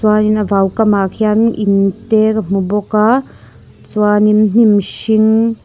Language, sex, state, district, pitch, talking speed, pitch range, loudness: Mizo, female, Mizoram, Aizawl, 215 Hz, 170 wpm, 205-220 Hz, -13 LUFS